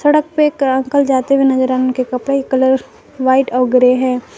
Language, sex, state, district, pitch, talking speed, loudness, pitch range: Hindi, female, Jharkhand, Palamu, 260 Hz, 220 wpm, -14 LUFS, 255-275 Hz